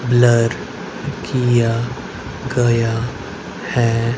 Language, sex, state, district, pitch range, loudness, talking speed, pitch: Hindi, male, Haryana, Rohtak, 115-125 Hz, -18 LUFS, 55 wpm, 120 Hz